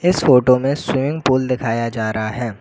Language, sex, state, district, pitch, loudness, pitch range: Hindi, male, Uttar Pradesh, Lucknow, 125 Hz, -17 LUFS, 115-140 Hz